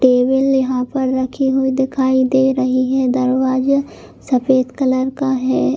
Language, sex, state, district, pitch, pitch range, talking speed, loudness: Hindi, female, Chhattisgarh, Bilaspur, 260 Hz, 255-265 Hz, 155 wpm, -16 LUFS